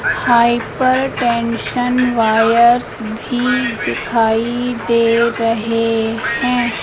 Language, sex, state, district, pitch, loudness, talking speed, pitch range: Hindi, female, Madhya Pradesh, Katni, 235 Hz, -15 LUFS, 60 wpm, 230-245 Hz